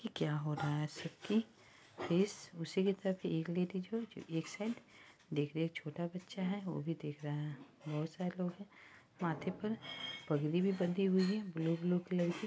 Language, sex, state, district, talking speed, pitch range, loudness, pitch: Hindi, male, Bihar, East Champaran, 190 wpm, 155-190 Hz, -39 LUFS, 175 Hz